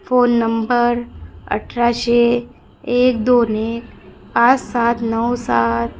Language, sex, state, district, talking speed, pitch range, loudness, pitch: Marathi, female, Maharashtra, Gondia, 100 wpm, 225-240 Hz, -17 LUFS, 235 Hz